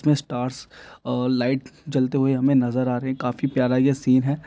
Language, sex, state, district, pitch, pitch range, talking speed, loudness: Maithili, male, Bihar, Samastipur, 130 Hz, 125-140 Hz, 200 wpm, -22 LUFS